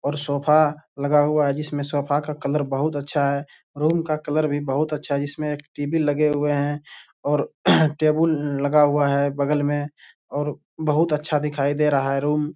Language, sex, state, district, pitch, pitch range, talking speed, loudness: Hindi, male, Bihar, Bhagalpur, 145 Hz, 145-150 Hz, 195 wpm, -22 LUFS